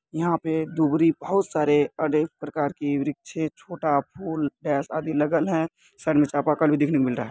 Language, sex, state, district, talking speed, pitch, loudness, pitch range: Hindi, male, Bihar, Muzaffarpur, 205 wpm, 155 Hz, -24 LUFS, 145-160 Hz